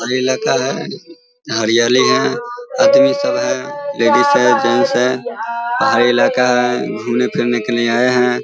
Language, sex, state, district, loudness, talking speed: Hindi, male, Bihar, Vaishali, -15 LUFS, 155 wpm